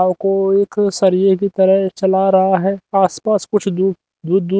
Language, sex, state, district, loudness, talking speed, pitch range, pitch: Hindi, male, Haryana, Jhajjar, -15 LUFS, 185 wpm, 190-195 Hz, 190 Hz